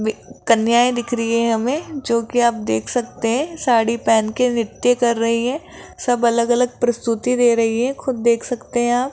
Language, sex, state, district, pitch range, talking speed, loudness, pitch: Hindi, female, Rajasthan, Jaipur, 230-245 Hz, 205 wpm, -18 LUFS, 240 Hz